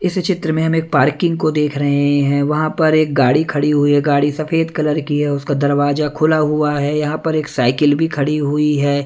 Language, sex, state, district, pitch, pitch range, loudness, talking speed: Hindi, male, Punjab, Kapurthala, 150 Hz, 145-155 Hz, -16 LUFS, 230 wpm